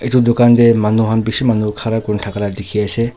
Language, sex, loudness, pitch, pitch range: Nagamese, male, -14 LUFS, 110 Hz, 105-120 Hz